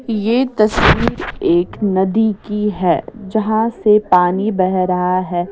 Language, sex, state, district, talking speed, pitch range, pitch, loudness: Hindi, female, Maharashtra, Mumbai Suburban, 130 wpm, 185-220 Hz, 210 Hz, -16 LUFS